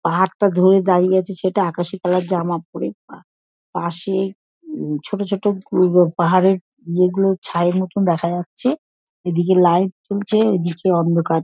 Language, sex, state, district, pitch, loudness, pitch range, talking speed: Bengali, female, West Bengal, Dakshin Dinajpur, 185 Hz, -18 LUFS, 175-195 Hz, 145 wpm